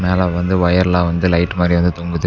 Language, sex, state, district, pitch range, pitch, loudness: Tamil, male, Tamil Nadu, Namakkal, 85-90 Hz, 90 Hz, -15 LUFS